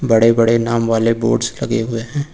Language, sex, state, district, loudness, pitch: Hindi, male, Uttar Pradesh, Lucknow, -16 LUFS, 115 Hz